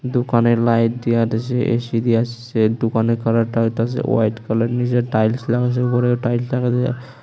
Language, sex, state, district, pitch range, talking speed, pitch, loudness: Bengali, male, Tripura, West Tripura, 115-125 Hz, 160 wpm, 120 Hz, -19 LUFS